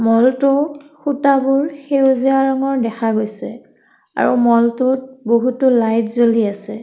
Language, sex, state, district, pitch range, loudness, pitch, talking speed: Assamese, female, Assam, Kamrup Metropolitan, 230-275 Hz, -16 LUFS, 255 Hz, 125 wpm